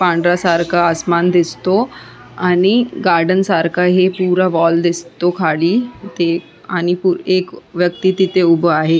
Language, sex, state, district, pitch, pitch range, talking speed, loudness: Marathi, female, Maharashtra, Sindhudurg, 175 Hz, 170-185 Hz, 125 wpm, -15 LUFS